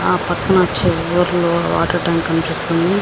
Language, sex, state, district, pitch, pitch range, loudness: Telugu, female, Andhra Pradesh, Srikakulam, 175 Hz, 165-180 Hz, -16 LUFS